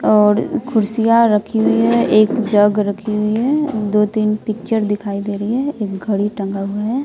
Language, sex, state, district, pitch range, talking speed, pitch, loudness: Hindi, female, Bihar, West Champaran, 205-225 Hz, 180 wpm, 210 Hz, -16 LUFS